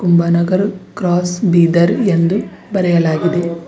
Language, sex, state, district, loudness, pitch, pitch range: Kannada, female, Karnataka, Bidar, -14 LUFS, 175 Hz, 170-190 Hz